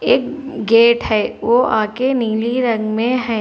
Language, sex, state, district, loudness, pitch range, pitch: Hindi, female, Telangana, Hyderabad, -16 LUFS, 220-250 Hz, 235 Hz